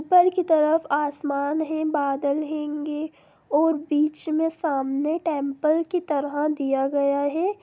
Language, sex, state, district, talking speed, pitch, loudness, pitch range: Hindi, female, Bihar, Darbhanga, 135 wpm, 300 Hz, -24 LUFS, 285-320 Hz